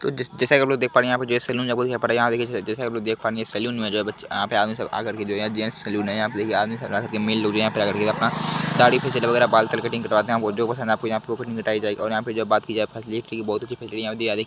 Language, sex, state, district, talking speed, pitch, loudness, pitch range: Hindi, male, Bihar, Jamui, 305 wpm, 110 Hz, -23 LUFS, 110-120 Hz